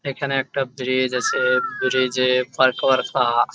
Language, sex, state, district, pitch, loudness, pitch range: Bengali, male, West Bengal, Jhargram, 130 Hz, -20 LUFS, 130-140 Hz